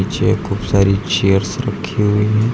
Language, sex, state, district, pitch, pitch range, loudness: Hindi, male, Uttar Pradesh, Lucknow, 105 Hz, 100-110 Hz, -16 LUFS